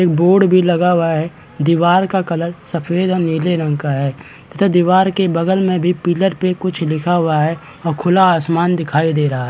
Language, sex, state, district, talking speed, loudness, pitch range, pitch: Hindi, male, Chhattisgarh, Balrampur, 200 wpm, -15 LUFS, 160-185 Hz, 170 Hz